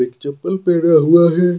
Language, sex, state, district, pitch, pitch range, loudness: Hindi, male, Jharkhand, Deoghar, 170 Hz, 145-175 Hz, -14 LUFS